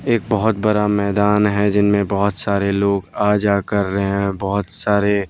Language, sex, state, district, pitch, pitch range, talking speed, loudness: Hindi, male, Bihar, West Champaran, 100 Hz, 100-105 Hz, 180 wpm, -18 LUFS